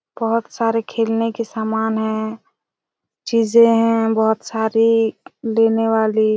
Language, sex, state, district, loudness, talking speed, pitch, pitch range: Hindi, female, Chhattisgarh, Raigarh, -18 LUFS, 115 wpm, 225 Hz, 220-230 Hz